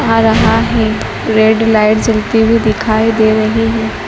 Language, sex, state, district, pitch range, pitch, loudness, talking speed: Hindi, female, Madhya Pradesh, Dhar, 215-225 Hz, 220 Hz, -11 LUFS, 160 wpm